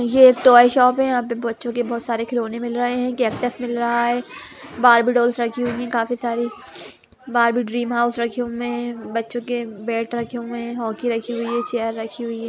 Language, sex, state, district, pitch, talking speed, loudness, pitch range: Hindi, female, Bihar, Gaya, 240 Hz, 225 wpm, -20 LUFS, 235-245 Hz